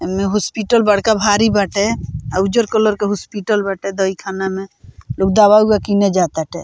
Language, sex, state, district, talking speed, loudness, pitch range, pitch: Bhojpuri, female, Bihar, Muzaffarpur, 160 wpm, -16 LUFS, 190-210 Hz, 200 Hz